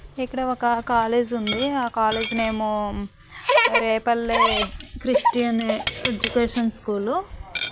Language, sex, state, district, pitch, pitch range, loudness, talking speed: Telugu, female, Andhra Pradesh, Manyam, 235 Hz, 220-245 Hz, -22 LUFS, 95 wpm